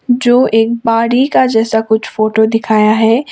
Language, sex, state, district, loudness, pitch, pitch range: Hindi, female, Sikkim, Gangtok, -11 LUFS, 225 Hz, 220-240 Hz